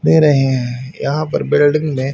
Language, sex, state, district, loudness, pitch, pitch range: Hindi, male, Haryana, Rohtak, -15 LUFS, 140 Hz, 130-150 Hz